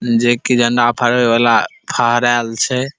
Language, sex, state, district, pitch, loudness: Maithili, male, Bihar, Saharsa, 120 Hz, -14 LUFS